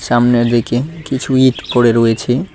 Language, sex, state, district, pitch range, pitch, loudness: Bengali, male, West Bengal, Cooch Behar, 120-130 Hz, 125 Hz, -14 LUFS